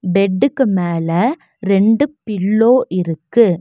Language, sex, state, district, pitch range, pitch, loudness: Tamil, female, Tamil Nadu, Nilgiris, 180-235 Hz, 195 Hz, -15 LUFS